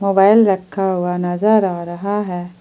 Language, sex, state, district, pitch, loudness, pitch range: Hindi, female, Jharkhand, Ranchi, 190 Hz, -16 LUFS, 180-200 Hz